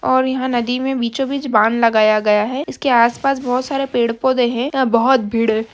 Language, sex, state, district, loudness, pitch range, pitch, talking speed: Hindi, female, Bihar, Jahanabad, -16 LUFS, 230-265 Hz, 245 Hz, 200 wpm